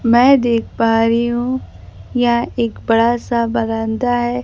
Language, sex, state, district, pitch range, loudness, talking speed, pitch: Hindi, female, Bihar, Kaimur, 230-245 Hz, -16 LUFS, 150 wpm, 235 Hz